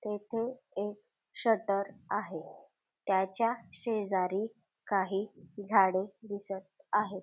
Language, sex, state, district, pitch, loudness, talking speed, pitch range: Marathi, female, Maharashtra, Dhule, 205 Hz, -33 LUFS, 85 wpm, 195-225 Hz